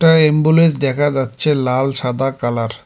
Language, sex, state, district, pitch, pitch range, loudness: Bengali, male, West Bengal, Cooch Behar, 135 Hz, 125-155 Hz, -15 LUFS